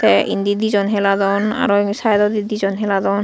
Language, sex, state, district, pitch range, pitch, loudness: Chakma, female, Tripura, Unakoti, 200-210 Hz, 205 Hz, -17 LUFS